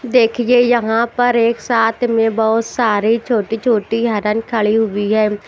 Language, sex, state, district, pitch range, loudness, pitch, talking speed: Hindi, female, Chhattisgarh, Raipur, 220-240 Hz, -15 LUFS, 225 Hz, 155 wpm